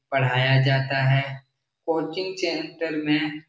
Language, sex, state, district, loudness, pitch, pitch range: Hindi, male, Bihar, Jahanabad, -23 LUFS, 140 Hz, 135-160 Hz